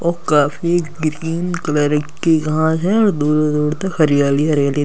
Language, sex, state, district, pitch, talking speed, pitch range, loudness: Hindi, male, Delhi, New Delhi, 155 Hz, 175 wpm, 150-170 Hz, -17 LUFS